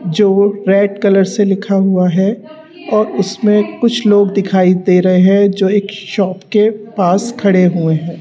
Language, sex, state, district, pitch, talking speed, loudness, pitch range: Hindi, female, Rajasthan, Jaipur, 200 Hz, 170 wpm, -13 LUFS, 190-210 Hz